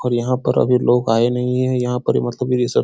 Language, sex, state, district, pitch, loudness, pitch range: Hindi, male, Bihar, Supaul, 125 Hz, -18 LUFS, 120-125 Hz